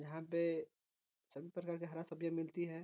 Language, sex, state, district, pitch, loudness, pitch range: Hindi, male, Bihar, Gopalganj, 165 Hz, -43 LUFS, 165-170 Hz